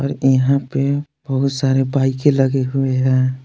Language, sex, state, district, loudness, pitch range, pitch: Hindi, male, Jharkhand, Palamu, -17 LUFS, 130-140 Hz, 135 Hz